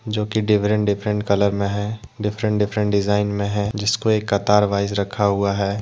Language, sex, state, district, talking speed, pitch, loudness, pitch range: Hindi, male, Jharkhand, Deoghar, 185 wpm, 105 Hz, -20 LUFS, 100-105 Hz